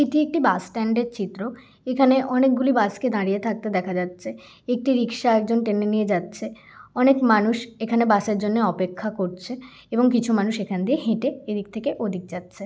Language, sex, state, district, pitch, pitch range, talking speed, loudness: Bengali, female, West Bengal, Kolkata, 225 Hz, 205-250 Hz, 180 wpm, -22 LUFS